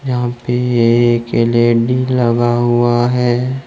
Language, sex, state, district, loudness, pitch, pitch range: Hindi, male, Jharkhand, Deoghar, -14 LUFS, 120 Hz, 120-125 Hz